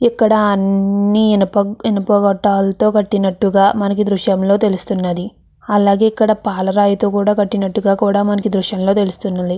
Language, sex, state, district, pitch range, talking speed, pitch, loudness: Telugu, female, Andhra Pradesh, Krishna, 195-210 Hz, 120 wpm, 205 Hz, -15 LUFS